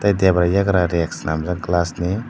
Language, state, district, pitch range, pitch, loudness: Kokborok, Tripura, Dhalai, 85-95 Hz, 90 Hz, -19 LUFS